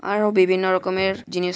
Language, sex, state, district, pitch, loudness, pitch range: Bengali, male, West Bengal, Malda, 185 Hz, -20 LUFS, 185-195 Hz